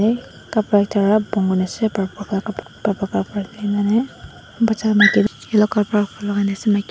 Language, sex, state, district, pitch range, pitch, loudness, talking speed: Nagamese, female, Nagaland, Dimapur, 200-215 Hz, 205 Hz, -19 LUFS, 155 wpm